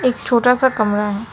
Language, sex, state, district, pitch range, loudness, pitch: Hindi, female, West Bengal, Alipurduar, 210-250 Hz, -16 LUFS, 235 Hz